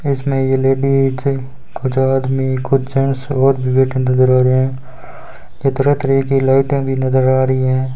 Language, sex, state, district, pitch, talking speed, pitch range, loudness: Hindi, male, Rajasthan, Bikaner, 130 Hz, 175 wpm, 130-135 Hz, -15 LUFS